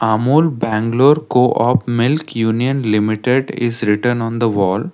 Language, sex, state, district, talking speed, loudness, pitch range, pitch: English, male, Karnataka, Bangalore, 135 wpm, -16 LUFS, 110-130 Hz, 120 Hz